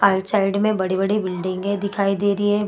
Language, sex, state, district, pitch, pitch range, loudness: Hindi, female, Bihar, Gaya, 200 Hz, 190-205 Hz, -21 LUFS